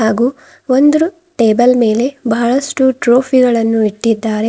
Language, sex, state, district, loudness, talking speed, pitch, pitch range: Kannada, female, Karnataka, Bidar, -13 LUFS, 105 wpm, 245 Hz, 225-265 Hz